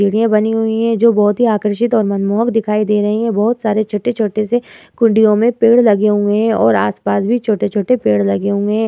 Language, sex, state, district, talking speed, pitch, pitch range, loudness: Hindi, female, Uttar Pradesh, Muzaffarnagar, 225 wpm, 215 Hz, 210-230 Hz, -14 LUFS